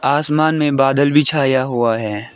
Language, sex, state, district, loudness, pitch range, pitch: Hindi, male, Arunachal Pradesh, Lower Dibang Valley, -15 LUFS, 120-150 Hz, 140 Hz